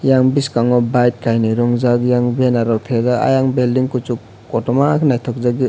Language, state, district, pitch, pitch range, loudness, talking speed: Kokborok, Tripura, West Tripura, 125 Hz, 120-130 Hz, -16 LUFS, 170 wpm